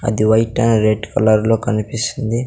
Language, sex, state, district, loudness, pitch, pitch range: Telugu, male, Andhra Pradesh, Sri Satya Sai, -16 LUFS, 110 Hz, 110-115 Hz